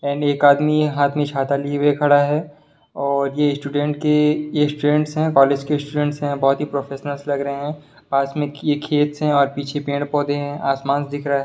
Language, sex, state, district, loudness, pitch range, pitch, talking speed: Hindi, male, Bihar, Sitamarhi, -19 LUFS, 140-150 Hz, 145 Hz, 205 wpm